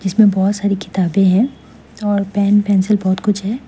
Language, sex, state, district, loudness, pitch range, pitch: Hindi, female, Meghalaya, West Garo Hills, -15 LUFS, 195-205 Hz, 200 Hz